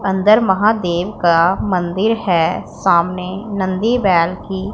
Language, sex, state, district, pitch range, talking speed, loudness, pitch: Hindi, female, Punjab, Pathankot, 175-205 Hz, 115 wpm, -16 LUFS, 190 Hz